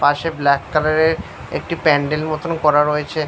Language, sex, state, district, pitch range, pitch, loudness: Bengali, male, West Bengal, Paschim Medinipur, 145-160 Hz, 155 Hz, -18 LUFS